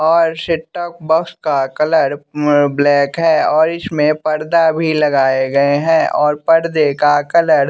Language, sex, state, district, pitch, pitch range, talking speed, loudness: Hindi, male, Bihar, West Champaran, 155 Hz, 145-165 Hz, 155 wpm, -14 LUFS